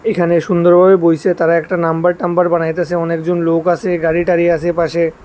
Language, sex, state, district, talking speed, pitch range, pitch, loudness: Bengali, male, Tripura, West Tripura, 170 wpm, 165-175 Hz, 175 Hz, -14 LUFS